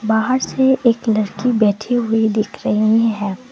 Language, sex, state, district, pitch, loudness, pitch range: Hindi, female, Assam, Kamrup Metropolitan, 220 Hz, -17 LUFS, 215-245 Hz